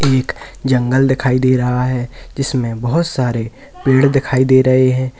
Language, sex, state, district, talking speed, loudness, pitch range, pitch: Hindi, male, Uttar Pradesh, Lalitpur, 160 wpm, -15 LUFS, 125-135 Hz, 130 Hz